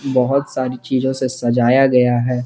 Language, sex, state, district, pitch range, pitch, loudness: Hindi, male, Jharkhand, Garhwa, 125-130 Hz, 130 Hz, -16 LUFS